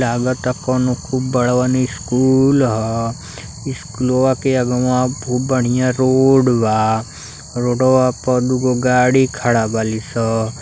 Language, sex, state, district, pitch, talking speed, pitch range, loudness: Bhojpuri, male, Uttar Pradesh, Deoria, 125 Hz, 125 wpm, 120-130 Hz, -16 LUFS